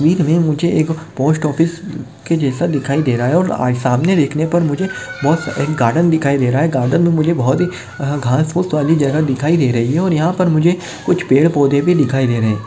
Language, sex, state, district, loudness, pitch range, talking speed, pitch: Hindi, male, Maharashtra, Chandrapur, -15 LUFS, 135-165 Hz, 240 wpm, 155 Hz